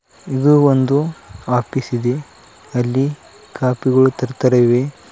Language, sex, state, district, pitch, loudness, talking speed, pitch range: Kannada, male, Karnataka, Bidar, 130 Hz, -17 LUFS, 105 wpm, 125-140 Hz